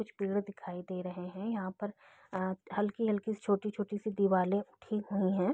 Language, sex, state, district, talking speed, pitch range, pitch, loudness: Hindi, female, Bihar, East Champaran, 185 wpm, 185-210 Hz, 200 Hz, -35 LUFS